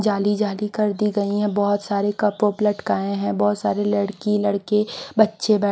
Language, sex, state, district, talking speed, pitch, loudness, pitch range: Hindi, female, Odisha, Khordha, 180 wpm, 205 Hz, -21 LUFS, 200-210 Hz